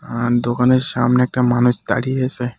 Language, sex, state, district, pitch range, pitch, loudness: Bengali, male, West Bengal, Alipurduar, 120-125 Hz, 125 Hz, -17 LUFS